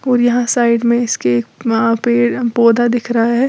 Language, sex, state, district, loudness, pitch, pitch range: Hindi, female, Uttar Pradesh, Lalitpur, -14 LUFS, 235 Hz, 230-240 Hz